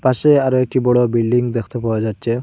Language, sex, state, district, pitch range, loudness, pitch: Bengali, male, Assam, Hailakandi, 115-130 Hz, -16 LUFS, 125 Hz